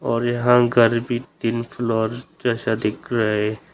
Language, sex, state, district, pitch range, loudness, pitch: Hindi, male, Arunachal Pradesh, Longding, 110-120 Hz, -21 LUFS, 115 Hz